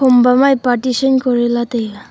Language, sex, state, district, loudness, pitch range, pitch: Wancho, female, Arunachal Pradesh, Longding, -14 LUFS, 240-260 Hz, 250 Hz